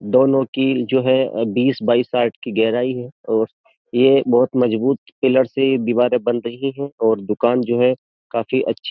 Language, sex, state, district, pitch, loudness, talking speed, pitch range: Hindi, male, Uttar Pradesh, Jyotiba Phule Nagar, 125 Hz, -18 LUFS, 190 wpm, 120-130 Hz